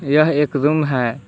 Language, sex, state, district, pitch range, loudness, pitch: Hindi, male, Jharkhand, Palamu, 135-150 Hz, -17 LUFS, 145 Hz